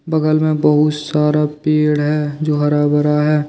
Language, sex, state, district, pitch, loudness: Hindi, male, Jharkhand, Deoghar, 150 Hz, -15 LUFS